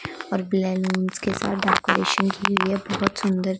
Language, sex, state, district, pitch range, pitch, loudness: Hindi, female, Punjab, Kapurthala, 185-195 Hz, 190 Hz, -23 LUFS